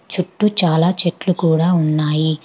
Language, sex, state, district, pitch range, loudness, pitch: Telugu, female, Telangana, Hyderabad, 160-185 Hz, -16 LUFS, 170 Hz